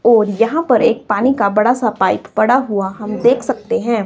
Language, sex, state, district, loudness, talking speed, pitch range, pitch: Hindi, female, Himachal Pradesh, Shimla, -15 LUFS, 220 wpm, 210-245 Hz, 230 Hz